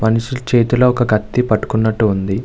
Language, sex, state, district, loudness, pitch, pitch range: Telugu, male, Andhra Pradesh, Visakhapatnam, -15 LUFS, 110 Hz, 110-125 Hz